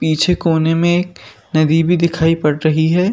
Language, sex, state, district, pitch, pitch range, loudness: Hindi, male, Madhya Pradesh, Bhopal, 165 Hz, 155-175 Hz, -15 LUFS